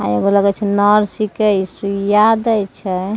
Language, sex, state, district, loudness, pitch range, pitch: Maithili, female, Bihar, Begusarai, -15 LUFS, 195-210 Hz, 205 Hz